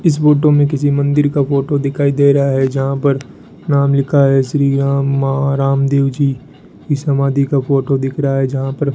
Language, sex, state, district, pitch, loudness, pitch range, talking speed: Hindi, female, Rajasthan, Bikaner, 140 Hz, -14 LUFS, 135-145 Hz, 210 wpm